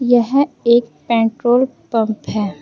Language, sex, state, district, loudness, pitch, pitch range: Hindi, female, Uttar Pradesh, Saharanpur, -16 LUFS, 235 Hz, 225-245 Hz